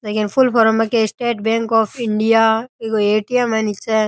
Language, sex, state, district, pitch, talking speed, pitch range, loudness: Rajasthani, male, Rajasthan, Nagaur, 225 Hz, 205 wpm, 215-230 Hz, -17 LUFS